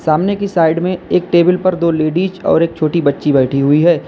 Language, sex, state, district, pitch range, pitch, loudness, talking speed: Hindi, male, Uttar Pradesh, Lalitpur, 155-180 Hz, 165 Hz, -14 LUFS, 235 wpm